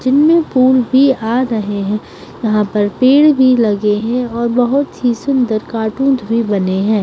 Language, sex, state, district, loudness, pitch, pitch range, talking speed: Hindi, female, Bihar, Saharsa, -14 LUFS, 235 Hz, 215-260 Hz, 170 wpm